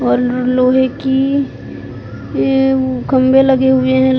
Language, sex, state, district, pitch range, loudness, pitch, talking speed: Hindi, female, Uttar Pradesh, Deoria, 255-265 Hz, -13 LUFS, 260 Hz, 130 wpm